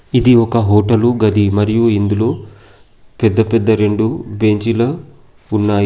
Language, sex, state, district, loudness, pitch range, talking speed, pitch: Telugu, male, Telangana, Adilabad, -14 LUFS, 105-115 Hz, 115 wpm, 110 Hz